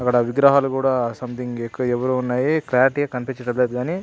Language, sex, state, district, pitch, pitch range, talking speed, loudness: Telugu, male, Andhra Pradesh, Anantapur, 125 Hz, 125-135 Hz, 150 wpm, -20 LUFS